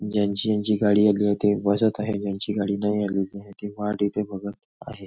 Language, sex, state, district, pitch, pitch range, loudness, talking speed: Marathi, male, Maharashtra, Nagpur, 105 Hz, 100-105 Hz, -24 LUFS, 215 wpm